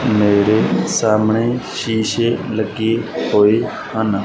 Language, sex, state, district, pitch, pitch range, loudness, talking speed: Punjabi, male, Punjab, Fazilka, 110 Hz, 105-115 Hz, -16 LUFS, 85 wpm